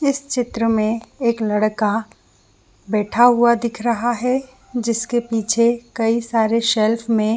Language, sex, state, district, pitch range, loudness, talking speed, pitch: Hindi, female, Jharkhand, Jamtara, 220-240 Hz, -19 LUFS, 130 wpm, 230 Hz